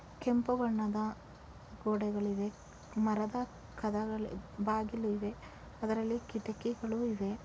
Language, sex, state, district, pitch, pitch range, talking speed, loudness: Kannada, female, Karnataka, Chamarajanagar, 215 Hz, 210-230 Hz, 90 wpm, -36 LUFS